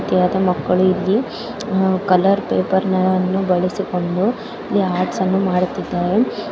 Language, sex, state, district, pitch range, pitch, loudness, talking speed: Kannada, female, Karnataka, Bellary, 180-195 Hz, 185 Hz, -18 LUFS, 85 wpm